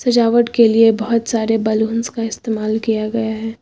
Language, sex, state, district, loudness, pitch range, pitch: Hindi, female, Uttar Pradesh, Lucknow, -16 LUFS, 220-230 Hz, 225 Hz